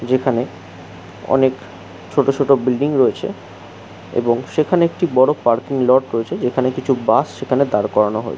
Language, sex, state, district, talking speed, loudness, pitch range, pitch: Bengali, male, West Bengal, Jhargram, 150 wpm, -17 LUFS, 95-135 Hz, 125 Hz